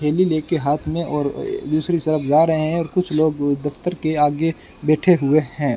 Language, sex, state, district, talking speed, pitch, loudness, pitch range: Hindi, male, Rajasthan, Bikaner, 210 wpm, 155 Hz, -19 LUFS, 150-165 Hz